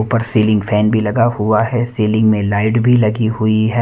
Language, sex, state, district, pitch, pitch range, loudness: Hindi, male, Punjab, Kapurthala, 110 Hz, 105-115 Hz, -14 LUFS